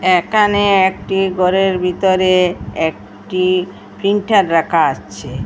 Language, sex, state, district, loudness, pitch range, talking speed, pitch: Bengali, female, Assam, Hailakandi, -15 LUFS, 180-195 Hz, 90 wpm, 185 Hz